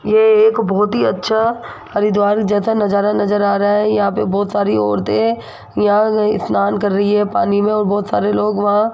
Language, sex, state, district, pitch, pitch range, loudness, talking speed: Hindi, female, Rajasthan, Jaipur, 205 Hz, 200-210 Hz, -15 LUFS, 210 wpm